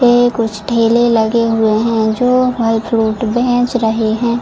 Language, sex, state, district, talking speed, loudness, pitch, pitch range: Hindi, female, Chhattisgarh, Bilaspur, 165 wpm, -13 LUFS, 230 Hz, 225-240 Hz